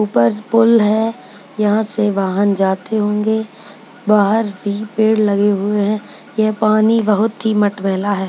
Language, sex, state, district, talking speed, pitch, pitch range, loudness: Hindi, female, Bihar, Purnia, 145 wpm, 210 Hz, 205-220 Hz, -16 LUFS